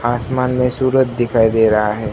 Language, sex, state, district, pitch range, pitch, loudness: Hindi, male, Gujarat, Gandhinagar, 110-125 Hz, 120 Hz, -15 LUFS